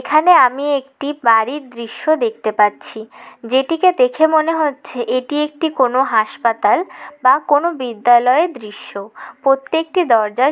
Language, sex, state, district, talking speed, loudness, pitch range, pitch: Bengali, female, West Bengal, Jalpaiguri, 120 wpm, -15 LUFS, 235-315 Hz, 270 Hz